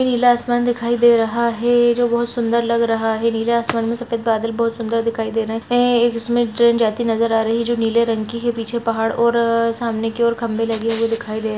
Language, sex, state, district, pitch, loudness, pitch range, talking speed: Angika, female, Bihar, Madhepura, 230 Hz, -18 LUFS, 225-235 Hz, 255 wpm